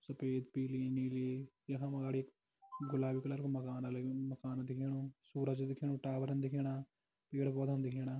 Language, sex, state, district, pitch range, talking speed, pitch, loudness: Garhwali, male, Uttarakhand, Tehri Garhwal, 130-135 Hz, 125 wpm, 135 Hz, -41 LUFS